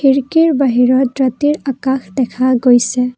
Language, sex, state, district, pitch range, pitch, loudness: Assamese, female, Assam, Kamrup Metropolitan, 250-270 Hz, 260 Hz, -14 LUFS